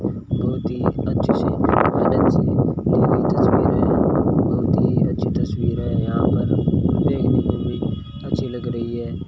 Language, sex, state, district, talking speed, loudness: Hindi, male, Rajasthan, Bikaner, 135 wpm, -19 LUFS